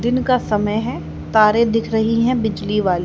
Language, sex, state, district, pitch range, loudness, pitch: Hindi, female, Haryana, Charkhi Dadri, 210-235 Hz, -18 LUFS, 220 Hz